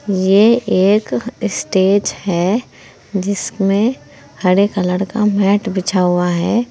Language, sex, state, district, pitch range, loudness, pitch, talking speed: Hindi, female, Uttar Pradesh, Saharanpur, 185-210 Hz, -15 LUFS, 195 Hz, 105 wpm